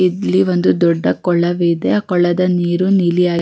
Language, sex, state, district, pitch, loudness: Kannada, female, Karnataka, Raichur, 175 Hz, -15 LUFS